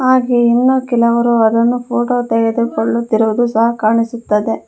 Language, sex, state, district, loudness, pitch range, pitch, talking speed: Kannada, female, Karnataka, Bangalore, -14 LUFS, 225-245 Hz, 235 Hz, 105 wpm